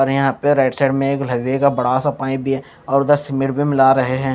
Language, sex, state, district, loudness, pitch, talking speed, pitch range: Hindi, male, Chandigarh, Chandigarh, -17 LUFS, 135 Hz, 260 wpm, 135-140 Hz